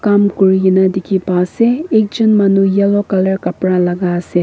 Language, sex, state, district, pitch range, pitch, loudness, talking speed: Nagamese, female, Nagaland, Kohima, 185-205 Hz, 190 Hz, -13 LUFS, 175 wpm